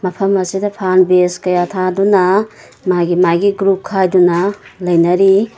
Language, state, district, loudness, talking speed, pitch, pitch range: Manipuri, Manipur, Imphal West, -14 LUFS, 120 wpm, 185 Hz, 180-195 Hz